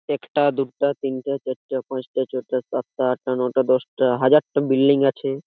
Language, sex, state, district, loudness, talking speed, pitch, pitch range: Bengali, male, West Bengal, Purulia, -21 LUFS, 145 wpm, 130 Hz, 130-140 Hz